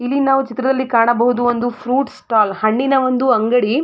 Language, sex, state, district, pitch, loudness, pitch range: Kannada, female, Karnataka, Mysore, 245 Hz, -16 LUFS, 235-265 Hz